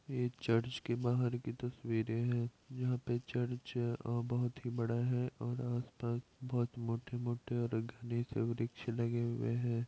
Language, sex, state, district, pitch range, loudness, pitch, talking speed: Hindi, male, Bihar, Madhepura, 120-125 Hz, -38 LUFS, 120 Hz, 165 wpm